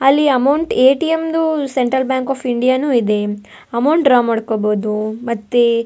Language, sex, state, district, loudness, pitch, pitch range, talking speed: Kannada, female, Karnataka, Bellary, -16 LUFS, 255 Hz, 230-275 Hz, 175 wpm